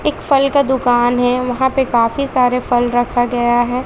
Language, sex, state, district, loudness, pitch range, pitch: Hindi, female, Bihar, West Champaran, -15 LUFS, 245-265 Hz, 245 Hz